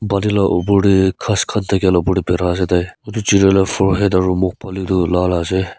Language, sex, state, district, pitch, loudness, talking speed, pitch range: Nagamese, male, Nagaland, Kohima, 95 Hz, -16 LUFS, 240 wpm, 90-100 Hz